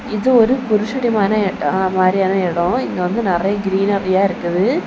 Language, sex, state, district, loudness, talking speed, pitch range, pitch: Tamil, female, Tamil Nadu, Kanyakumari, -16 LUFS, 135 wpm, 185-220 Hz, 195 Hz